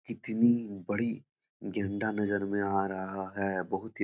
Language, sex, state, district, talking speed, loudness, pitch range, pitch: Hindi, male, Bihar, Jahanabad, 165 wpm, -32 LUFS, 95-110 Hz, 100 Hz